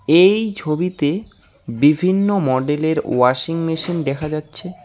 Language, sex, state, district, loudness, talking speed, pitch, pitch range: Bengali, male, West Bengal, Alipurduar, -18 LUFS, 100 wpm, 160 Hz, 150-180 Hz